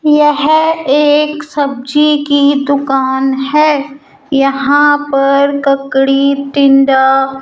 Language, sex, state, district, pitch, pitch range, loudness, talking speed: Hindi, female, Rajasthan, Jaipur, 280 Hz, 275-295 Hz, -11 LUFS, 90 wpm